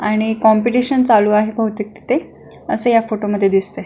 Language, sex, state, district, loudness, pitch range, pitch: Marathi, female, Maharashtra, Pune, -16 LUFS, 210-230 Hz, 215 Hz